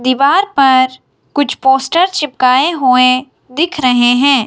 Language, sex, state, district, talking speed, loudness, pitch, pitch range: Hindi, male, Himachal Pradesh, Shimla, 120 wpm, -12 LUFS, 265 Hz, 255-285 Hz